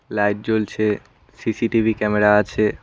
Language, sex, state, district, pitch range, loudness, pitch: Bengali, male, West Bengal, Cooch Behar, 105-110 Hz, -20 LUFS, 105 Hz